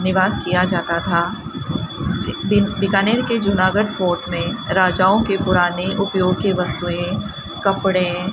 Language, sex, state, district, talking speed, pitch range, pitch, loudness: Hindi, female, Rajasthan, Bikaner, 130 wpm, 180-195 Hz, 185 Hz, -18 LUFS